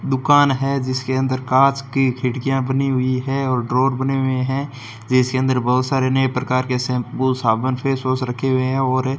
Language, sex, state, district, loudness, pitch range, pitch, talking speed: Hindi, male, Rajasthan, Bikaner, -19 LUFS, 130-135 Hz, 130 Hz, 200 wpm